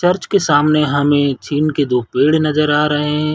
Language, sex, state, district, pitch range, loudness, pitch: Hindi, male, Chhattisgarh, Sarguja, 145-155 Hz, -15 LUFS, 150 Hz